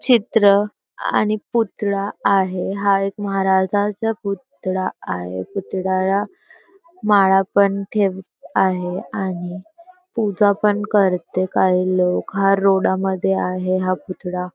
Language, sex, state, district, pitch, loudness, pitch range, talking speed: Marathi, female, Maharashtra, Sindhudurg, 195 Hz, -19 LUFS, 185-205 Hz, 105 wpm